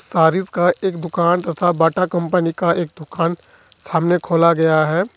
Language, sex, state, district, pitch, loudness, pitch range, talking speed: Hindi, male, Jharkhand, Ranchi, 170 Hz, -17 LUFS, 165-180 Hz, 160 wpm